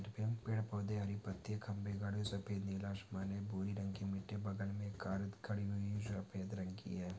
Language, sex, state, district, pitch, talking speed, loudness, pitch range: Hindi, male, Maharashtra, Dhule, 100 Hz, 200 wpm, -43 LUFS, 95-105 Hz